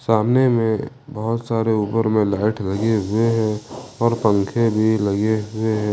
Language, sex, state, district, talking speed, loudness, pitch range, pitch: Hindi, male, Jharkhand, Ranchi, 160 wpm, -20 LUFS, 105-115 Hz, 110 Hz